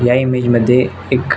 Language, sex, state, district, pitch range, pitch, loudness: Marathi, male, Maharashtra, Nagpur, 120-125 Hz, 125 Hz, -14 LUFS